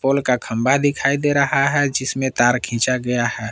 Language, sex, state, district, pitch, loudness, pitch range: Hindi, male, Jharkhand, Palamu, 130 Hz, -18 LUFS, 120-140 Hz